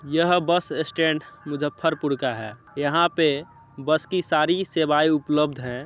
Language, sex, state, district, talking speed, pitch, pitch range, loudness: Hindi, male, Bihar, Muzaffarpur, 145 wpm, 150 Hz, 145-165 Hz, -23 LUFS